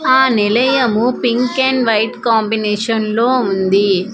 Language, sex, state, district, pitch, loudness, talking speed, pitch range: Telugu, female, Andhra Pradesh, Manyam, 230 Hz, -14 LUFS, 100 wpm, 215-255 Hz